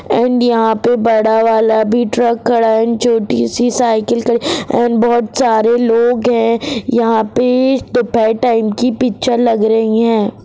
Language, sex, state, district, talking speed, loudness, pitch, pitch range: Hindi, female, Bihar, Gopalganj, 160 wpm, -13 LUFS, 235 Hz, 225-245 Hz